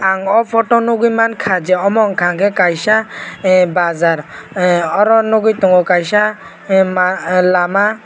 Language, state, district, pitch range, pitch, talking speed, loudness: Kokborok, Tripura, West Tripura, 180-215 Hz, 190 Hz, 110 wpm, -13 LUFS